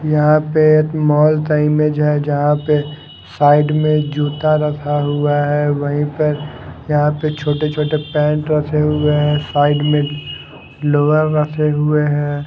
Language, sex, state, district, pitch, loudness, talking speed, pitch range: Hindi, male, Haryana, Rohtak, 150 Hz, -15 LUFS, 150 wpm, 145-150 Hz